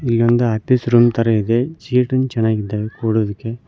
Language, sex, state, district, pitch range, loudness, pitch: Kannada, male, Karnataka, Koppal, 110-125 Hz, -17 LUFS, 115 Hz